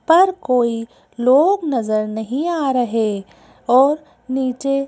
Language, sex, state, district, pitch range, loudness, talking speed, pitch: Hindi, female, Madhya Pradesh, Bhopal, 230-285 Hz, -18 LUFS, 110 wpm, 255 Hz